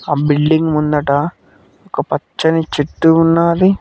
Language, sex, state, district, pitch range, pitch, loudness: Telugu, male, Telangana, Mahabubabad, 145-165 Hz, 160 Hz, -14 LUFS